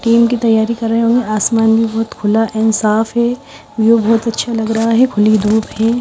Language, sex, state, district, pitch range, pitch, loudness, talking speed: Hindi, female, Haryana, Charkhi Dadri, 220-230 Hz, 225 Hz, -13 LUFS, 220 wpm